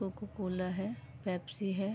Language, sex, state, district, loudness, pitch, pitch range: Hindi, female, Uttar Pradesh, Varanasi, -38 LUFS, 195 Hz, 185-200 Hz